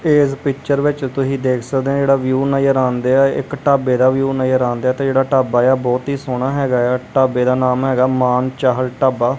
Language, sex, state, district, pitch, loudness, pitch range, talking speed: Punjabi, male, Punjab, Kapurthala, 130 Hz, -16 LUFS, 125-135 Hz, 205 wpm